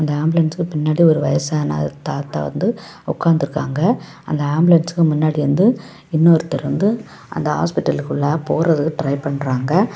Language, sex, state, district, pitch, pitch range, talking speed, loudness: Tamil, female, Tamil Nadu, Kanyakumari, 155 Hz, 145-170 Hz, 110 wpm, -18 LUFS